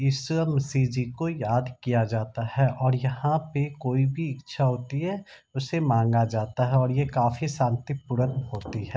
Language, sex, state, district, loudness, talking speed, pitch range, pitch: Hindi, male, Bihar, Madhepura, -26 LUFS, 165 wpm, 120-140 Hz, 130 Hz